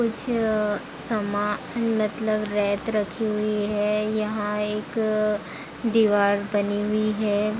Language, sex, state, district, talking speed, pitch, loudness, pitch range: Hindi, female, Uttar Pradesh, Hamirpur, 120 wpm, 210 Hz, -24 LUFS, 210-215 Hz